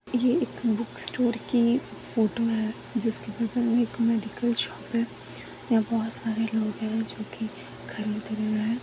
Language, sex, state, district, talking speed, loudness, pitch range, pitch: Hindi, female, Chhattisgarh, Balrampur, 155 wpm, -28 LUFS, 220-235 Hz, 225 Hz